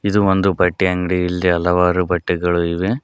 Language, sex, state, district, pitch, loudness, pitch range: Kannada, male, Karnataka, Koppal, 90 Hz, -17 LUFS, 90-95 Hz